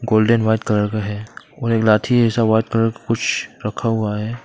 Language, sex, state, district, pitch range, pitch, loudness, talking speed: Hindi, male, Arunachal Pradesh, Papum Pare, 110-115 Hz, 110 Hz, -18 LUFS, 215 wpm